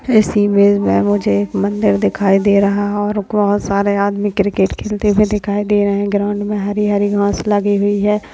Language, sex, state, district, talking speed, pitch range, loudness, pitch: Hindi, male, Uttarakhand, Tehri Garhwal, 210 wpm, 200-205 Hz, -15 LUFS, 205 Hz